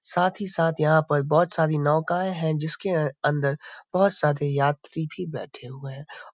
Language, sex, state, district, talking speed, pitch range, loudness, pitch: Hindi, male, Uttar Pradesh, Varanasi, 170 wpm, 145-175 Hz, -24 LUFS, 155 Hz